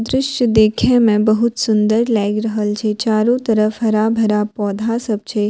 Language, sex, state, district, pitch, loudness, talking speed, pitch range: Maithili, female, Bihar, Purnia, 220 Hz, -16 LUFS, 150 wpm, 215-230 Hz